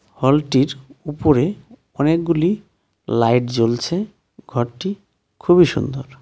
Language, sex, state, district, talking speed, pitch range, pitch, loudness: Bengali, male, West Bengal, Darjeeling, 75 wpm, 130-175 Hz, 145 Hz, -19 LUFS